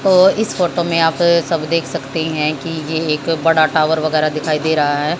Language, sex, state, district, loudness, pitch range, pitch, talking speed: Hindi, female, Haryana, Jhajjar, -16 LUFS, 155-170 Hz, 160 Hz, 220 wpm